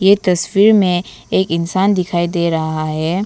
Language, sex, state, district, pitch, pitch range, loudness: Hindi, female, Arunachal Pradesh, Papum Pare, 175 Hz, 165-195 Hz, -15 LUFS